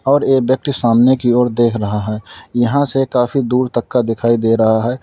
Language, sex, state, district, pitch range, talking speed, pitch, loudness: Hindi, male, Uttar Pradesh, Lalitpur, 115-130 Hz, 225 wpm, 120 Hz, -15 LUFS